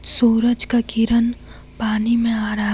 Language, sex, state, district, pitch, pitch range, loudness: Hindi, female, Jharkhand, Deoghar, 230 Hz, 220-235 Hz, -17 LUFS